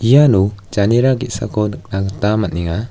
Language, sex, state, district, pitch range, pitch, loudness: Garo, male, Meghalaya, West Garo Hills, 95-120 Hz, 105 Hz, -16 LUFS